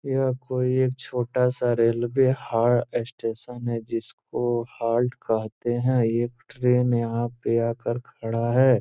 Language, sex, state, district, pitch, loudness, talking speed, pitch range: Hindi, male, Bihar, Gopalganj, 120 Hz, -25 LUFS, 145 wpm, 115-125 Hz